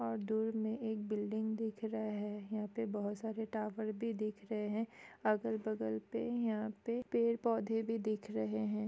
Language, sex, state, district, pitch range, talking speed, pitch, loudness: Hindi, female, Chhattisgarh, Sukma, 210-225 Hz, 180 wpm, 220 Hz, -39 LUFS